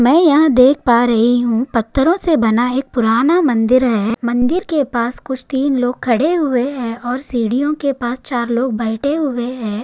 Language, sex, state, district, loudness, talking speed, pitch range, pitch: Hindi, female, Maharashtra, Chandrapur, -15 LUFS, 190 wpm, 235-280 Hz, 250 Hz